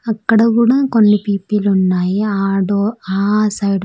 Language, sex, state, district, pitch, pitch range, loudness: Telugu, female, Andhra Pradesh, Sri Satya Sai, 205 Hz, 195-220 Hz, -15 LUFS